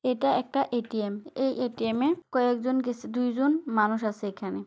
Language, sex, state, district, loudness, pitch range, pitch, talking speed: Bengali, female, West Bengal, Kolkata, -28 LUFS, 220-265 Hz, 245 Hz, 205 wpm